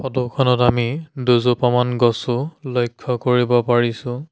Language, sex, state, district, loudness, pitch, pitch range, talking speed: Assamese, male, Assam, Sonitpur, -19 LUFS, 125 Hz, 120-125 Hz, 110 wpm